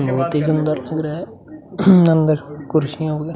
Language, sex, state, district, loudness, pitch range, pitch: Hindi, male, Bihar, Vaishali, -17 LUFS, 150-165 Hz, 155 Hz